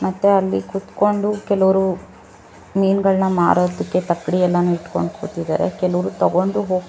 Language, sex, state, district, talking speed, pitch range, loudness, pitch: Kannada, female, Karnataka, Bangalore, 105 wpm, 175-195 Hz, -19 LUFS, 185 Hz